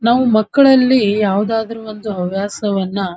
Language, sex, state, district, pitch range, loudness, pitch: Kannada, female, Karnataka, Dharwad, 200-230 Hz, -15 LUFS, 215 Hz